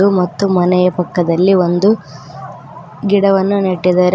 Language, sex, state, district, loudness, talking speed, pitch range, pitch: Kannada, female, Karnataka, Koppal, -13 LUFS, 85 wpm, 170-195 Hz, 180 Hz